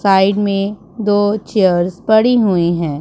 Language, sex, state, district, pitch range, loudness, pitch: Hindi, female, Punjab, Pathankot, 185-210 Hz, -14 LUFS, 200 Hz